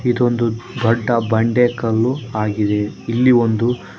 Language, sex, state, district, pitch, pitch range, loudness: Kannada, male, Karnataka, Koppal, 115 Hz, 110-120 Hz, -17 LUFS